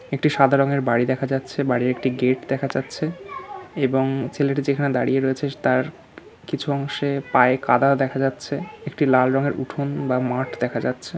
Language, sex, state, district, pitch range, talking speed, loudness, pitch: Bengali, male, West Bengal, Kolkata, 130-145 Hz, 165 wpm, -21 LUFS, 135 Hz